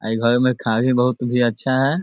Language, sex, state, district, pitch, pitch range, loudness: Hindi, male, Bihar, Sitamarhi, 125 Hz, 120-130 Hz, -19 LUFS